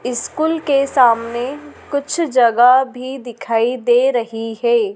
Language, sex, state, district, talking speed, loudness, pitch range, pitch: Hindi, female, Madhya Pradesh, Dhar, 120 wpm, -16 LUFS, 235-275 Hz, 250 Hz